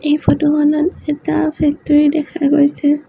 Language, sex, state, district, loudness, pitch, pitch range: Assamese, female, Assam, Sonitpur, -15 LUFS, 295 Hz, 295-310 Hz